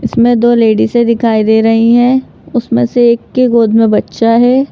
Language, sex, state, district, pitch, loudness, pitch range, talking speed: Hindi, female, Madhya Pradesh, Bhopal, 235 Hz, -10 LUFS, 225-240 Hz, 205 wpm